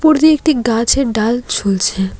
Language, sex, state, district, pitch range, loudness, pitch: Bengali, female, West Bengal, Alipurduar, 210-305 Hz, -14 LUFS, 235 Hz